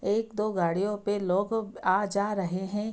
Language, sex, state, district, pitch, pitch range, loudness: Hindi, female, Bihar, Madhepura, 205 Hz, 190-210 Hz, -28 LUFS